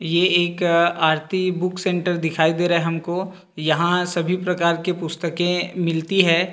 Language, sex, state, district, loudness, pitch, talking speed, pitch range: Hindi, male, Chhattisgarh, Rajnandgaon, -20 LUFS, 175 Hz, 155 wpm, 170-180 Hz